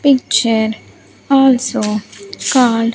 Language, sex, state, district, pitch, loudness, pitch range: English, female, Andhra Pradesh, Sri Satya Sai, 245 Hz, -14 LUFS, 225-270 Hz